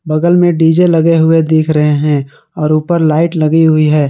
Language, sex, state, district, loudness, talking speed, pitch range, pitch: Hindi, male, Jharkhand, Garhwa, -11 LUFS, 205 wpm, 155-165 Hz, 160 Hz